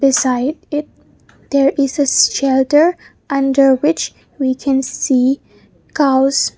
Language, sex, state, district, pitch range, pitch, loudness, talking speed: English, female, Mizoram, Aizawl, 265-285 Hz, 275 Hz, -15 LUFS, 110 wpm